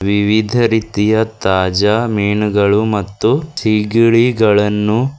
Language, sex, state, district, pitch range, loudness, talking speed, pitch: Kannada, female, Karnataka, Bidar, 105-110 Hz, -14 LUFS, 70 wpm, 105 Hz